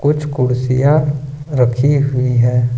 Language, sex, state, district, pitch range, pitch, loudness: Hindi, male, Jharkhand, Ranchi, 125-145 Hz, 135 Hz, -15 LUFS